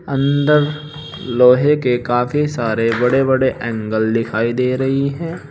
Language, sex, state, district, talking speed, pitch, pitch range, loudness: Hindi, male, Uttar Pradesh, Saharanpur, 130 wpm, 130 Hz, 120-150 Hz, -16 LUFS